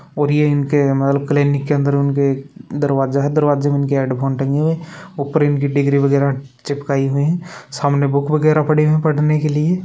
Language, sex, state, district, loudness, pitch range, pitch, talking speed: Hindi, male, Rajasthan, Churu, -17 LUFS, 140-150 Hz, 145 Hz, 195 wpm